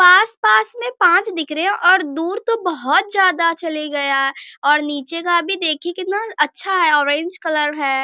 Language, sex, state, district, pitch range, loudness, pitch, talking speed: Hindi, female, Bihar, Bhagalpur, 300-380 Hz, -17 LUFS, 345 Hz, 195 wpm